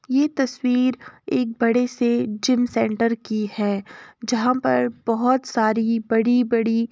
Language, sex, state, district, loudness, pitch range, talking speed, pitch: Hindi, female, Uttar Pradesh, Jalaun, -21 LUFS, 225-250 Hz, 130 wpm, 235 Hz